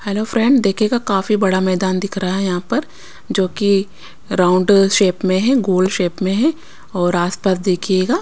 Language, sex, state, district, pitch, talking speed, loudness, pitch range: Hindi, female, Bihar, West Champaran, 195 Hz, 175 wpm, -16 LUFS, 185-215 Hz